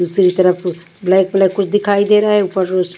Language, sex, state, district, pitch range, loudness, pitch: Hindi, female, Punjab, Kapurthala, 180-200 Hz, -14 LUFS, 190 Hz